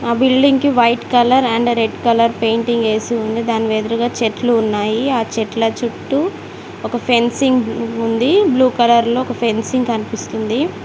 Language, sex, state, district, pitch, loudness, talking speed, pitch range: Telugu, female, Telangana, Mahabubabad, 235 Hz, -16 LUFS, 150 wpm, 225-250 Hz